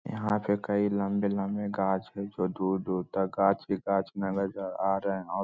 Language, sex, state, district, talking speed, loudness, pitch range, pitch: Magahi, male, Bihar, Lakhisarai, 185 wpm, -30 LUFS, 95-100 Hz, 100 Hz